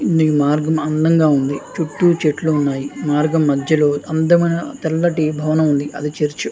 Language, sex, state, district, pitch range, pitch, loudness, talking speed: Telugu, male, Andhra Pradesh, Anantapur, 145-160 Hz, 155 Hz, -17 LUFS, 145 wpm